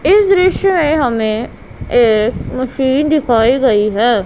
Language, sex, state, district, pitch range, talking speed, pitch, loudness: Hindi, female, Punjab, Pathankot, 225-310 Hz, 125 wpm, 250 Hz, -13 LUFS